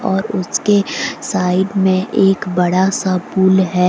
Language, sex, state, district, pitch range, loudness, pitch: Hindi, female, Jharkhand, Deoghar, 185-200 Hz, -15 LUFS, 190 Hz